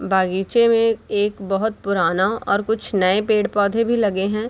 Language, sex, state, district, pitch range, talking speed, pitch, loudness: Hindi, female, Bihar, Sitamarhi, 195-220 Hz, 160 wpm, 205 Hz, -19 LUFS